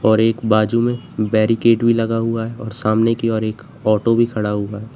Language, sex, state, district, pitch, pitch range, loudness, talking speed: Hindi, male, Uttar Pradesh, Lalitpur, 115 Hz, 110-115 Hz, -18 LUFS, 220 wpm